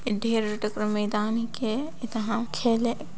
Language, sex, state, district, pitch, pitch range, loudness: Sadri, female, Chhattisgarh, Jashpur, 225 Hz, 210-235 Hz, -27 LUFS